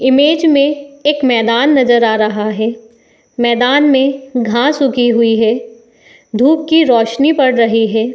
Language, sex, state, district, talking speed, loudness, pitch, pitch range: Hindi, female, Uttar Pradesh, Etah, 170 wpm, -12 LUFS, 245 Hz, 230-280 Hz